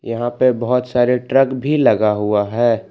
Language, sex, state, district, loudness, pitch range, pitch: Hindi, male, Jharkhand, Palamu, -16 LUFS, 110-125 Hz, 120 Hz